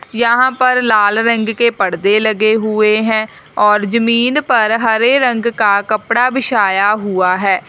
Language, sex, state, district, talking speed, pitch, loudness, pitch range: Hindi, female, Uttar Pradesh, Lalitpur, 150 wpm, 220 Hz, -13 LUFS, 210-235 Hz